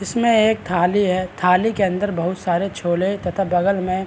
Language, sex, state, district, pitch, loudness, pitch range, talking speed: Hindi, male, Bihar, Vaishali, 185 Hz, -19 LUFS, 180-200 Hz, 205 wpm